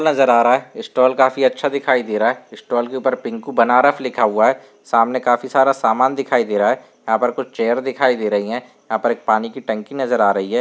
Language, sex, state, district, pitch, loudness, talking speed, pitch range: Hindi, male, Uttar Pradesh, Varanasi, 125 Hz, -17 LUFS, 255 wpm, 110-135 Hz